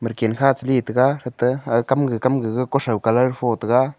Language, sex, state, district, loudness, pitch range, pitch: Wancho, male, Arunachal Pradesh, Longding, -20 LUFS, 115-130 Hz, 125 Hz